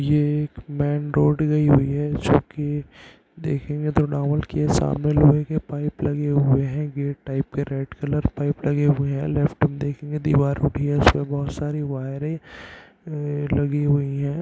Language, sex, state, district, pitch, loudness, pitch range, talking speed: Hindi, male, Uttarakhand, Tehri Garhwal, 145 Hz, -22 LUFS, 140-150 Hz, 165 wpm